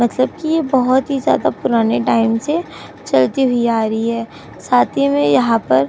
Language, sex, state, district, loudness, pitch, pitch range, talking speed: Hindi, female, Uttar Pradesh, Jyotiba Phule Nagar, -16 LUFS, 230 Hz, 220-260 Hz, 195 wpm